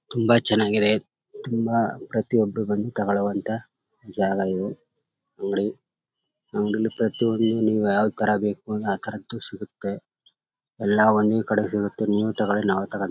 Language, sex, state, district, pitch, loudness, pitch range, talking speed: Kannada, male, Karnataka, Chamarajanagar, 105 Hz, -24 LUFS, 100-110 Hz, 120 wpm